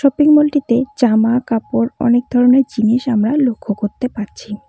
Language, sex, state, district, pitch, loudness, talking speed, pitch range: Bengali, female, West Bengal, Cooch Behar, 245 Hz, -15 LUFS, 155 wpm, 225-265 Hz